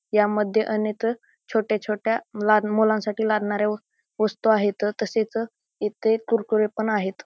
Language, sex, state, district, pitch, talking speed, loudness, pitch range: Marathi, male, Maharashtra, Pune, 215 Hz, 125 wpm, -23 LUFS, 210-220 Hz